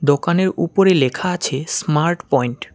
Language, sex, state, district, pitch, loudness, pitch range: Bengali, male, West Bengal, Alipurduar, 170 Hz, -18 LUFS, 145-180 Hz